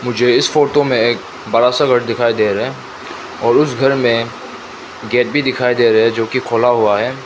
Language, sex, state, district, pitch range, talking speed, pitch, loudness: Hindi, male, Manipur, Imphal West, 115-130 Hz, 215 wpm, 125 Hz, -14 LUFS